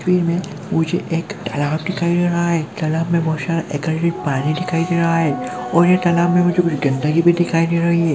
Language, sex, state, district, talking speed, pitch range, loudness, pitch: Hindi, male, Chhattisgarh, Kabirdham, 200 wpm, 160-175 Hz, -18 LUFS, 170 Hz